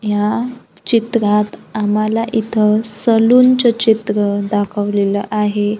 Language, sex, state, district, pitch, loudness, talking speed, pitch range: Marathi, female, Maharashtra, Gondia, 215 Hz, -15 LUFS, 95 wpm, 210-230 Hz